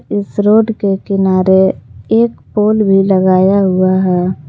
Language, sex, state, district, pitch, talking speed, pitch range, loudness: Hindi, female, Jharkhand, Palamu, 195 Hz, 135 wpm, 185-205 Hz, -12 LUFS